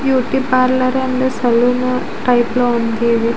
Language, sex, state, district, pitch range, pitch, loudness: Telugu, female, Andhra Pradesh, Visakhapatnam, 235-255 Hz, 250 Hz, -15 LUFS